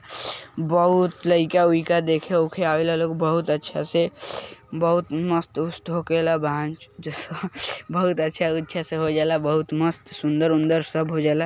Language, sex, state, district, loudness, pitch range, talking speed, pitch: Bhojpuri, male, Bihar, East Champaran, -22 LUFS, 155-170 Hz, 140 wpm, 165 Hz